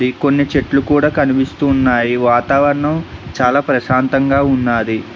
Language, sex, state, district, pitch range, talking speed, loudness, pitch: Telugu, male, Telangana, Hyderabad, 125-140 Hz, 115 wpm, -14 LUFS, 135 Hz